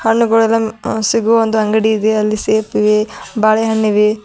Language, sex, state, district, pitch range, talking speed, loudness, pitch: Kannada, female, Karnataka, Bidar, 215-225 Hz, 140 wpm, -14 LUFS, 220 Hz